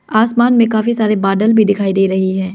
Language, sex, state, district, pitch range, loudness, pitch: Hindi, female, Arunachal Pradesh, Lower Dibang Valley, 195-225 Hz, -13 LUFS, 215 Hz